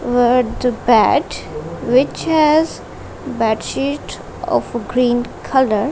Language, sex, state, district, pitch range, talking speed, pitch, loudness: English, female, Punjab, Kapurthala, 245-280 Hz, 80 wpm, 250 Hz, -17 LUFS